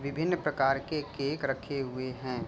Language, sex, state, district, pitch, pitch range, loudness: Hindi, male, Uttar Pradesh, Jalaun, 140 Hz, 130-150 Hz, -32 LUFS